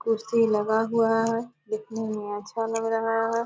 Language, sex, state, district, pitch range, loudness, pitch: Hindi, female, Bihar, Purnia, 220-225 Hz, -26 LUFS, 225 Hz